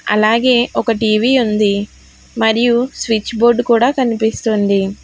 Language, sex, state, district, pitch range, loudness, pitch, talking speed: Telugu, female, Telangana, Hyderabad, 215-240 Hz, -14 LUFS, 225 Hz, 105 wpm